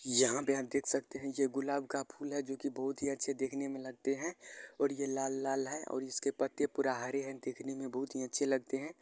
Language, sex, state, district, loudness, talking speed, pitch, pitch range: Hindi, male, Bihar, Araria, -36 LUFS, 255 wpm, 135 Hz, 135-140 Hz